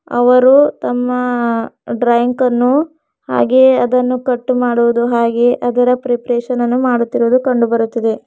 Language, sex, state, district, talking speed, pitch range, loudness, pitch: Kannada, female, Karnataka, Bidar, 110 wpm, 240-255 Hz, -14 LUFS, 245 Hz